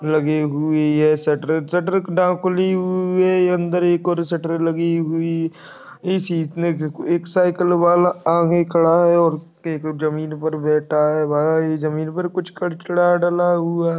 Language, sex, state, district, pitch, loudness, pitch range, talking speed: Hindi, male, Uttarakhand, Uttarkashi, 170 Hz, -19 LUFS, 155-175 Hz, 175 wpm